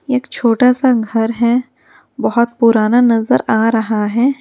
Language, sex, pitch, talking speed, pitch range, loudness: Hindi, female, 235 Hz, 150 wpm, 225-255 Hz, -14 LUFS